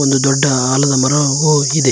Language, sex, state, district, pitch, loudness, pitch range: Kannada, male, Karnataka, Koppal, 135 Hz, -13 LUFS, 135-145 Hz